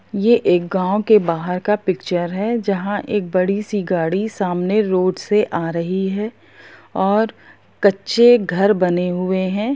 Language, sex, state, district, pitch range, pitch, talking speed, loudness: Hindi, female, Bihar, Gopalganj, 180-210 Hz, 195 Hz, 155 wpm, -18 LUFS